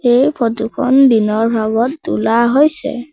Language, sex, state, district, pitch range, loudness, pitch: Assamese, male, Assam, Sonitpur, 225-275 Hz, -14 LUFS, 240 Hz